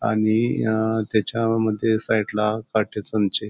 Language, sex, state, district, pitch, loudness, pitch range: Marathi, male, Maharashtra, Pune, 110 Hz, -21 LUFS, 105-110 Hz